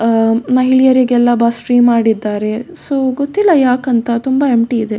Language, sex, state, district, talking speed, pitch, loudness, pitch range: Kannada, female, Karnataka, Dakshina Kannada, 145 wpm, 245 Hz, -13 LUFS, 230-260 Hz